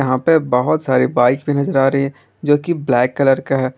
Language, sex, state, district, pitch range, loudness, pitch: Hindi, male, Jharkhand, Garhwa, 130-145 Hz, -16 LUFS, 135 Hz